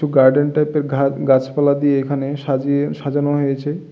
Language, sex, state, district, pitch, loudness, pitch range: Bengali, male, Tripura, West Tripura, 140 Hz, -17 LUFS, 135-145 Hz